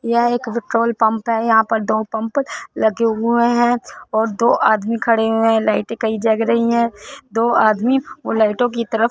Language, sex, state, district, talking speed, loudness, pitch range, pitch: Hindi, female, Punjab, Fazilka, 195 wpm, -17 LUFS, 220-235 Hz, 230 Hz